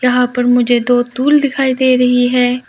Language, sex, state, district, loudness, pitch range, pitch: Hindi, female, Arunachal Pradesh, Lower Dibang Valley, -12 LUFS, 245-260 Hz, 250 Hz